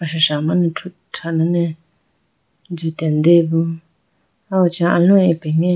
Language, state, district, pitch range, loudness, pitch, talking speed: Idu Mishmi, Arunachal Pradesh, Lower Dibang Valley, 160-175 Hz, -17 LUFS, 165 Hz, 105 wpm